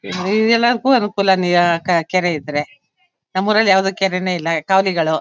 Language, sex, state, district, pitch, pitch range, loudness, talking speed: Kannada, female, Karnataka, Mysore, 190 Hz, 175-205 Hz, -16 LUFS, 125 wpm